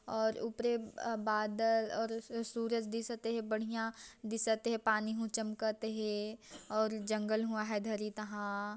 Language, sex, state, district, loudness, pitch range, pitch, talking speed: Chhattisgarhi, female, Chhattisgarh, Jashpur, -37 LUFS, 215-225 Hz, 220 Hz, 145 wpm